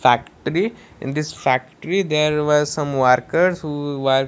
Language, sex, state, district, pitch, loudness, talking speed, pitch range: English, male, Odisha, Malkangiri, 150 Hz, -20 LUFS, 155 wpm, 135-150 Hz